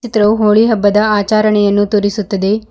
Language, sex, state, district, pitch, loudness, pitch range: Kannada, female, Karnataka, Bidar, 210 Hz, -12 LUFS, 205-215 Hz